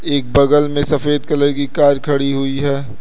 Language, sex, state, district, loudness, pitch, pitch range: Hindi, male, Uttar Pradesh, Lucknow, -15 LUFS, 145 Hz, 140-145 Hz